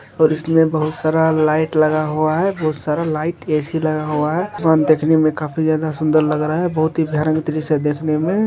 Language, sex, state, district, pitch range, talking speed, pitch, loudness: Hindi, male, Bihar, Kishanganj, 155-160 Hz, 220 wpm, 155 Hz, -17 LUFS